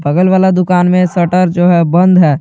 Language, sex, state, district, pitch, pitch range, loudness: Hindi, male, Jharkhand, Garhwa, 180 Hz, 175-185 Hz, -10 LUFS